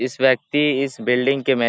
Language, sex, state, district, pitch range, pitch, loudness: Hindi, male, Bihar, Jahanabad, 125-140 Hz, 135 Hz, -19 LUFS